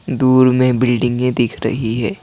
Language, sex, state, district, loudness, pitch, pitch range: Hindi, male, Assam, Kamrup Metropolitan, -15 LUFS, 125 Hz, 120-130 Hz